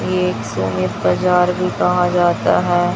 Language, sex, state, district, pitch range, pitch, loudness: Hindi, male, Chhattisgarh, Raipur, 110-180 Hz, 175 Hz, -17 LUFS